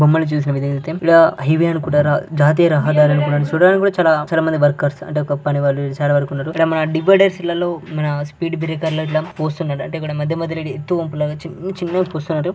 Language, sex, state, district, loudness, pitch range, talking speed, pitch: Telugu, male, Telangana, Karimnagar, -17 LUFS, 150-165 Hz, 190 wpm, 155 Hz